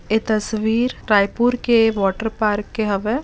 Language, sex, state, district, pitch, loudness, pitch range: Chhattisgarhi, female, Chhattisgarh, Bastar, 220 Hz, -19 LUFS, 210-230 Hz